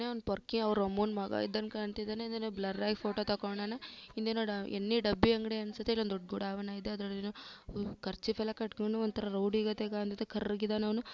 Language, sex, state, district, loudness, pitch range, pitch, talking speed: Kannada, female, Karnataka, Dakshina Kannada, -36 LUFS, 205-220 Hz, 215 Hz, 180 wpm